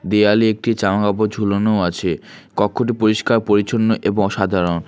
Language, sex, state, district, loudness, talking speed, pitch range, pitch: Bengali, male, West Bengal, Alipurduar, -17 LUFS, 125 wpm, 100-110 Hz, 105 Hz